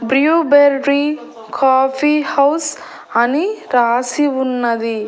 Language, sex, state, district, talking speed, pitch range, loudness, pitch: Telugu, female, Andhra Pradesh, Annamaya, 85 wpm, 250-295 Hz, -15 LUFS, 280 Hz